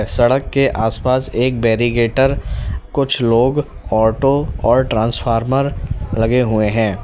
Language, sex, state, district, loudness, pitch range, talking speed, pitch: Hindi, male, Uttar Pradesh, Lalitpur, -16 LUFS, 110-130 Hz, 120 wpm, 120 Hz